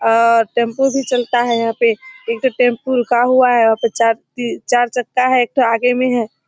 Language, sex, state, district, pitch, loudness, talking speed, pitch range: Hindi, female, Bihar, Kishanganj, 240 Hz, -15 LUFS, 230 wpm, 230-255 Hz